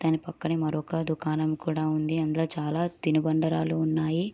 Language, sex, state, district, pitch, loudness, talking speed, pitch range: Telugu, female, Andhra Pradesh, Srikakulam, 160 Hz, -28 LUFS, 140 wpm, 155-165 Hz